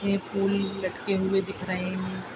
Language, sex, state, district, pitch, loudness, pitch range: Hindi, female, Bihar, Araria, 195 Hz, -28 LUFS, 185-195 Hz